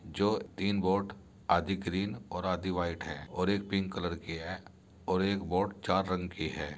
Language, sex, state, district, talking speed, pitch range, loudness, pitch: Hindi, male, Uttar Pradesh, Muzaffarnagar, 195 wpm, 85-95 Hz, -33 LUFS, 95 Hz